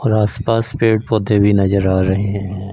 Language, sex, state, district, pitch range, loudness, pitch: Hindi, male, Punjab, Fazilka, 100-110 Hz, -16 LUFS, 105 Hz